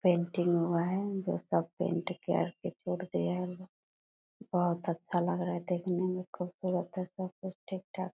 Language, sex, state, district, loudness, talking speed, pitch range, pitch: Hindi, female, Bihar, Purnia, -34 LUFS, 175 wpm, 175-185 Hz, 180 Hz